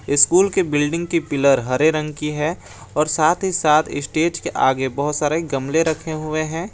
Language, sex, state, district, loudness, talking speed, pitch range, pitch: Hindi, male, Jharkhand, Garhwa, -19 LUFS, 195 wpm, 145-165 Hz, 155 Hz